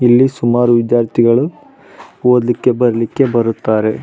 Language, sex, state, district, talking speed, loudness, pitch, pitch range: Kannada, male, Karnataka, Raichur, 90 wpm, -13 LUFS, 120 Hz, 115-125 Hz